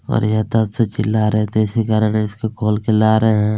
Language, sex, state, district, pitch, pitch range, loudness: Hindi, male, Chhattisgarh, Kabirdham, 110 Hz, 105-110 Hz, -17 LUFS